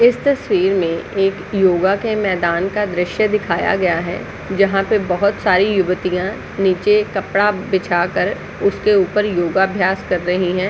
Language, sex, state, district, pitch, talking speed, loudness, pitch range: Hindi, female, Chhattisgarh, Balrampur, 190 Hz, 155 wpm, -17 LUFS, 180-205 Hz